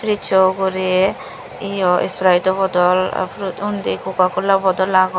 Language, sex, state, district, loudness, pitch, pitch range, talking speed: Chakma, female, Tripura, Dhalai, -17 LUFS, 190 Hz, 185-195 Hz, 115 wpm